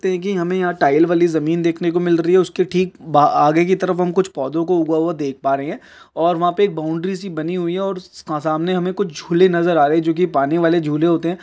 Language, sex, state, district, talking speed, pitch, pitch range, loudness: Hindi, male, Chhattisgarh, Kabirdham, 275 wpm, 170 Hz, 160-185 Hz, -17 LUFS